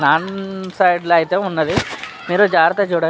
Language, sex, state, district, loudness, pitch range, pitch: Telugu, male, Telangana, Nalgonda, -17 LUFS, 165-195 Hz, 180 Hz